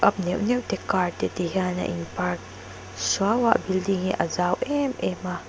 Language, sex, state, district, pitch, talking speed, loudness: Mizo, female, Mizoram, Aizawl, 180 Hz, 220 wpm, -25 LUFS